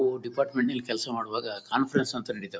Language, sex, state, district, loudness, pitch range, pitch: Kannada, male, Karnataka, Bellary, -29 LUFS, 120-130 Hz, 125 Hz